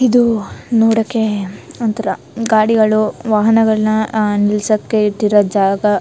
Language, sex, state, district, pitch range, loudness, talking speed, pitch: Kannada, female, Karnataka, Chamarajanagar, 210-225 Hz, -15 LUFS, 100 wpm, 215 Hz